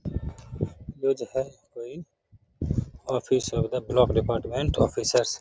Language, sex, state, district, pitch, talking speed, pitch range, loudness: Hindi, male, Bihar, Gaya, 125 Hz, 120 wpm, 115-135 Hz, -27 LUFS